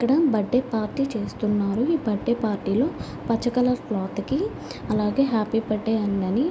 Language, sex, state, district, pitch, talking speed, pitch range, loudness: Telugu, female, Andhra Pradesh, Guntur, 220 Hz, 155 wpm, 210-250 Hz, -24 LUFS